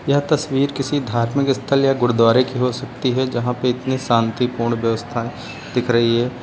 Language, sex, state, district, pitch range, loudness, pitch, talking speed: Hindi, male, Uttar Pradesh, Lucknow, 120-135 Hz, -19 LUFS, 125 Hz, 175 wpm